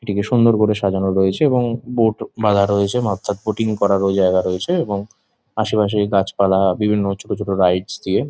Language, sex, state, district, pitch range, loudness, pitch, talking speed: Bengali, male, West Bengal, Jhargram, 95-110 Hz, -18 LUFS, 100 Hz, 160 wpm